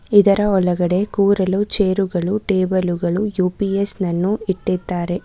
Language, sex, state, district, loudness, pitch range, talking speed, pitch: Kannada, female, Karnataka, Bangalore, -18 LUFS, 180-200 Hz, 105 wpm, 190 Hz